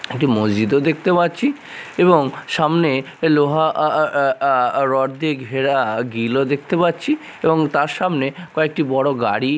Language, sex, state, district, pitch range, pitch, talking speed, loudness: Bengali, male, Odisha, Nuapada, 135-165 Hz, 150 Hz, 150 wpm, -18 LUFS